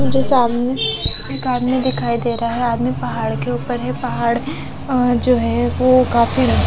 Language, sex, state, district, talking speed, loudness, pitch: Hindi, female, Odisha, Nuapada, 170 wpm, -16 LUFS, 235 Hz